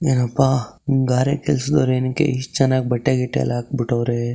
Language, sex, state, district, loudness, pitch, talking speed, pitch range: Kannada, male, Karnataka, Shimoga, -19 LUFS, 130 Hz, 140 wpm, 120-135 Hz